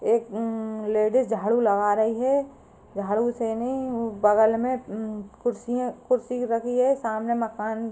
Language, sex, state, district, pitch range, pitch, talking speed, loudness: Hindi, female, Uttar Pradesh, Ghazipur, 215-245 Hz, 230 Hz, 150 wpm, -25 LUFS